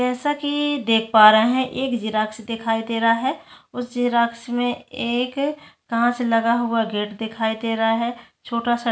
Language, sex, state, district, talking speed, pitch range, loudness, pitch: Hindi, female, Chhattisgarh, Kabirdham, 170 wpm, 225-250 Hz, -21 LUFS, 235 Hz